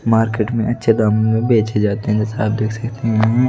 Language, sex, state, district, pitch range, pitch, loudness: Hindi, male, Delhi, New Delhi, 110-115 Hz, 110 Hz, -17 LUFS